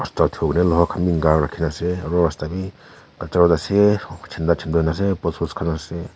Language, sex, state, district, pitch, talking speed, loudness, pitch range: Nagamese, male, Nagaland, Kohima, 85 Hz, 185 wpm, -20 LUFS, 80-90 Hz